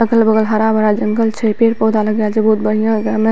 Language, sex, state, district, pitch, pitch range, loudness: Maithili, female, Bihar, Purnia, 220 Hz, 215-220 Hz, -14 LUFS